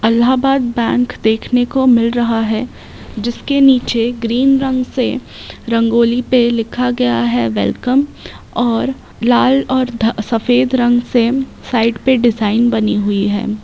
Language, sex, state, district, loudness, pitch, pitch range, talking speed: Hindi, female, Bihar, Bhagalpur, -14 LUFS, 240 Hz, 225-255 Hz, 130 wpm